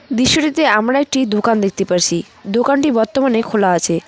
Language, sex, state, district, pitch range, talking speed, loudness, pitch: Bengali, female, West Bengal, Cooch Behar, 195-270 Hz, 145 wpm, -15 LUFS, 230 Hz